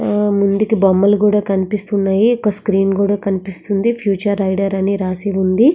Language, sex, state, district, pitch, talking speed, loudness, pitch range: Telugu, female, Andhra Pradesh, Srikakulam, 200 Hz, 135 wpm, -16 LUFS, 195-210 Hz